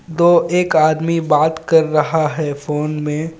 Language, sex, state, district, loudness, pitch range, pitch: Hindi, male, Jharkhand, Ranchi, -16 LUFS, 150-165 Hz, 160 Hz